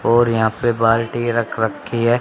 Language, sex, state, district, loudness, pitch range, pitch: Hindi, male, Haryana, Rohtak, -18 LUFS, 115-120 Hz, 115 Hz